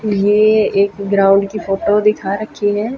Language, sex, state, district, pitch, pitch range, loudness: Hindi, female, Haryana, Jhajjar, 205 Hz, 200-215 Hz, -14 LUFS